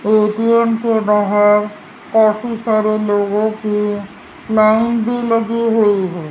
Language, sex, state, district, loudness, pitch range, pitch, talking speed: Hindi, female, Rajasthan, Jaipur, -15 LUFS, 210-230 Hz, 215 Hz, 115 wpm